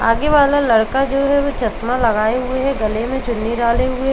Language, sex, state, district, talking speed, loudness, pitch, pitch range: Hindi, female, Uttar Pradesh, Jalaun, 215 wpm, -17 LUFS, 255 Hz, 230-275 Hz